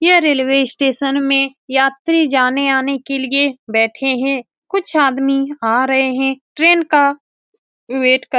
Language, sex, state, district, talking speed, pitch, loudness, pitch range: Hindi, female, Bihar, Saran, 150 wpm, 270 Hz, -15 LUFS, 265-285 Hz